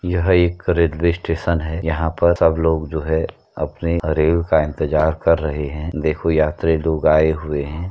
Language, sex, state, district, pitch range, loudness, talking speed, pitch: Hindi, male, Uttar Pradesh, Jyotiba Phule Nagar, 80-85 Hz, -19 LUFS, 175 wpm, 80 Hz